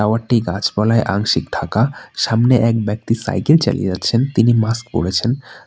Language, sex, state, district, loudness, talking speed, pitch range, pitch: Bengali, male, West Bengal, Alipurduar, -17 LUFS, 150 wpm, 105-120 Hz, 115 Hz